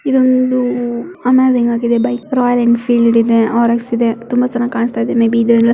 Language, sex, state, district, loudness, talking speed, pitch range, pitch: Kannada, female, Karnataka, Mysore, -13 LUFS, 155 wpm, 235-245 Hz, 235 Hz